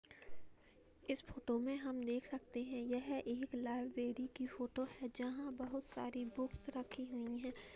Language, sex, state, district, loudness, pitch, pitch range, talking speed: Hindi, female, Uttar Pradesh, Hamirpur, -44 LUFS, 255 Hz, 245-265 Hz, 155 wpm